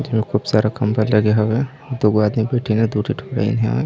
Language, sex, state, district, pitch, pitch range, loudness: Chhattisgarhi, male, Chhattisgarh, Raigarh, 110 Hz, 105-125 Hz, -18 LUFS